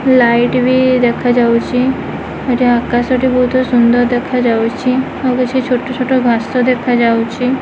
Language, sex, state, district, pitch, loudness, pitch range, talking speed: Odia, female, Odisha, Khordha, 250 Hz, -13 LUFS, 240-255 Hz, 110 wpm